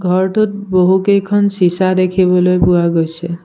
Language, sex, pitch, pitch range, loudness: Assamese, male, 185 Hz, 180-195 Hz, -13 LUFS